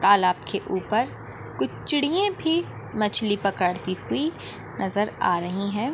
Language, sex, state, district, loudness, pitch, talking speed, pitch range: Hindi, female, Uttar Pradesh, Ghazipur, -24 LUFS, 200 Hz, 130 wpm, 180-250 Hz